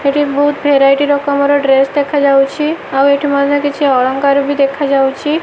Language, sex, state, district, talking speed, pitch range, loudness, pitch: Odia, female, Odisha, Malkangiri, 135 wpm, 275-285 Hz, -12 LUFS, 280 Hz